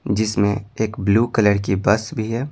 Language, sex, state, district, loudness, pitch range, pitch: Hindi, male, Bihar, Patna, -19 LUFS, 100-110 Hz, 110 Hz